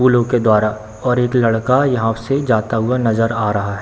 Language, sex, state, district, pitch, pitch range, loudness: Hindi, male, Bihar, Samastipur, 115 Hz, 110-125 Hz, -16 LUFS